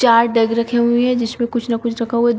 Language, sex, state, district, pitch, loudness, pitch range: Hindi, female, Uttar Pradesh, Shamli, 235 Hz, -17 LUFS, 230-240 Hz